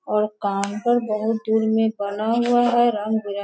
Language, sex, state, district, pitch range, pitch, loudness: Hindi, female, Bihar, Sitamarhi, 210-230 Hz, 220 Hz, -21 LUFS